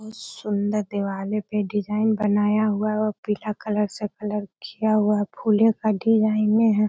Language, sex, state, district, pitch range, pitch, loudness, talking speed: Hindi, female, Uttar Pradesh, Hamirpur, 210-215 Hz, 210 Hz, -23 LUFS, 175 wpm